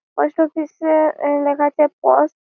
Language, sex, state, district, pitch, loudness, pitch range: Bengali, female, West Bengal, Malda, 305 Hz, -17 LUFS, 290-315 Hz